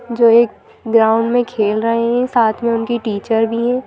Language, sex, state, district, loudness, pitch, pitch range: Hindi, female, Madhya Pradesh, Bhopal, -15 LUFS, 230 Hz, 225-240 Hz